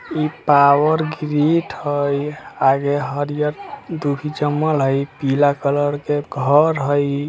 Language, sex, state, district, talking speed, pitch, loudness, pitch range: Bajjika, male, Bihar, Vaishali, 130 wpm, 145 Hz, -18 LUFS, 140-150 Hz